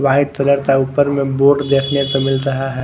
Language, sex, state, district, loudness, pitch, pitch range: Hindi, female, Himachal Pradesh, Shimla, -15 LUFS, 140 Hz, 135-140 Hz